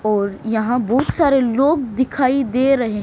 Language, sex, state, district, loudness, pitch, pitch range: Hindi, male, Haryana, Charkhi Dadri, -17 LUFS, 255 Hz, 220-270 Hz